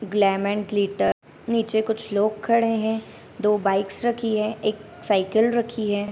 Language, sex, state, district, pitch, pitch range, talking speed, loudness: Hindi, female, Bihar, Darbhanga, 215 Hz, 205-225 Hz, 145 wpm, -23 LUFS